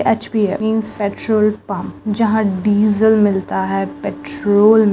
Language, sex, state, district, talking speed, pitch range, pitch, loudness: Chhattisgarhi, female, Chhattisgarh, Rajnandgaon, 120 wpm, 205-220 Hz, 210 Hz, -16 LUFS